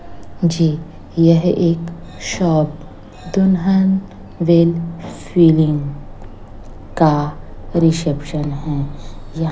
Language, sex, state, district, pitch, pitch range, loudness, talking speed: Hindi, female, Chhattisgarh, Raipur, 160 Hz, 145-170 Hz, -17 LUFS, 70 wpm